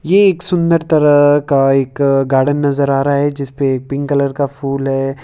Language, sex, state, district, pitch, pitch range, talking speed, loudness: Hindi, male, Himachal Pradesh, Shimla, 140 Hz, 135-145 Hz, 205 wpm, -14 LUFS